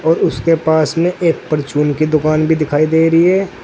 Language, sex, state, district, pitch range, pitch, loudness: Hindi, male, Uttar Pradesh, Saharanpur, 155-165 Hz, 160 Hz, -14 LUFS